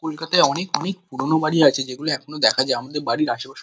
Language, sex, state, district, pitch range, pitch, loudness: Bengali, male, West Bengal, Kolkata, 135-165 Hz, 155 Hz, -20 LUFS